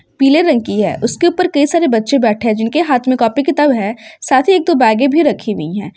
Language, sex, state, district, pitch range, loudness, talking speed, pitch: Hindi, female, Uttar Pradesh, Ghazipur, 220-320 Hz, -13 LUFS, 250 wpm, 265 Hz